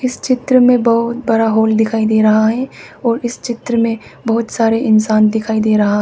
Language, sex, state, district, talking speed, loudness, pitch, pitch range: Hindi, female, Arunachal Pradesh, Papum Pare, 200 wpm, -14 LUFS, 225 Hz, 220-240 Hz